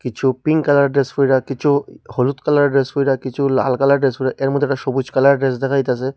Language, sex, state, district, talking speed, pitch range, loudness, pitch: Bengali, male, Tripura, Unakoti, 225 wpm, 130-140 Hz, -17 LUFS, 135 Hz